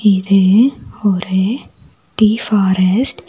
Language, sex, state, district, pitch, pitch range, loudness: Tamil, female, Tamil Nadu, Nilgiris, 205 Hz, 190-220 Hz, -14 LUFS